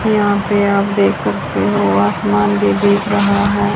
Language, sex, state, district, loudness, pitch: Hindi, female, Haryana, Jhajjar, -14 LUFS, 200 Hz